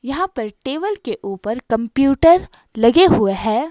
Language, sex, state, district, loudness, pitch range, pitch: Hindi, female, Himachal Pradesh, Shimla, -17 LUFS, 220-325 Hz, 245 Hz